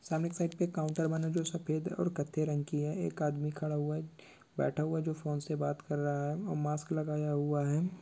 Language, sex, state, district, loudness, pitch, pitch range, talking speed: Hindi, male, Bihar, Araria, -35 LUFS, 155 Hz, 150-160 Hz, 245 wpm